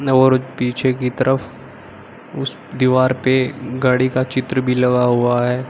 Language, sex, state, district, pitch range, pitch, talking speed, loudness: Hindi, male, Uttar Pradesh, Shamli, 125-130 Hz, 130 Hz, 145 wpm, -17 LUFS